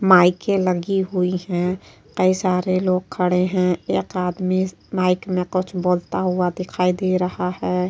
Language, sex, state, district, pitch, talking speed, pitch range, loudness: Hindi, female, Uttar Pradesh, Etah, 180 Hz, 150 wpm, 180-185 Hz, -21 LUFS